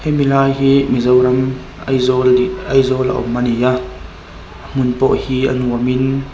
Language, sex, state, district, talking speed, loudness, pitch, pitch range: Mizo, male, Mizoram, Aizawl, 170 wpm, -15 LUFS, 130 Hz, 125-135 Hz